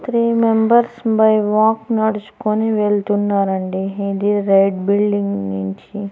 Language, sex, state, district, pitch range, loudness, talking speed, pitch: Telugu, female, Andhra Pradesh, Annamaya, 200-220 Hz, -17 LUFS, 100 wpm, 210 Hz